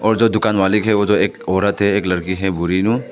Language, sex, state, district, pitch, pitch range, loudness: Hindi, male, Arunachal Pradesh, Papum Pare, 100 Hz, 95-105 Hz, -17 LUFS